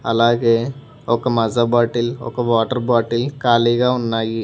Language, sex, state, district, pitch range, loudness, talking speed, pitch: Telugu, male, Telangana, Hyderabad, 115-125 Hz, -18 LUFS, 120 wpm, 120 Hz